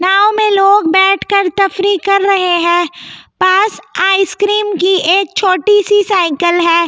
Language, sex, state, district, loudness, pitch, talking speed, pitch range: Hindi, female, Delhi, New Delhi, -11 LUFS, 390 Hz, 150 wpm, 370-400 Hz